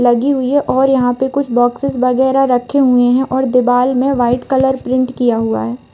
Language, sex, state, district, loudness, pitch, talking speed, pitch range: Hindi, female, Bihar, Madhepura, -14 LUFS, 255 Hz, 210 wpm, 245-265 Hz